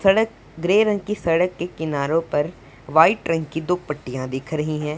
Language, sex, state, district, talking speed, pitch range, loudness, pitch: Hindi, female, Punjab, Pathankot, 195 wpm, 150-180 Hz, -22 LUFS, 160 Hz